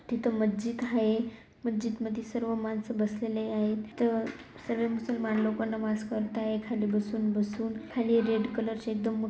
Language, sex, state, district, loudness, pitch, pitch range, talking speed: Marathi, female, Maharashtra, Dhule, -31 LUFS, 225 Hz, 220-230 Hz, 150 wpm